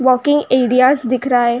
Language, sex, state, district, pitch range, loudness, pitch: Hindi, female, Uttar Pradesh, Jyotiba Phule Nagar, 250-260 Hz, -14 LUFS, 255 Hz